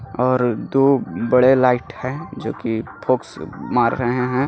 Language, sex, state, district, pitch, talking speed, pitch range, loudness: Hindi, male, Jharkhand, Garhwa, 125 Hz, 145 wpm, 120-130 Hz, -19 LUFS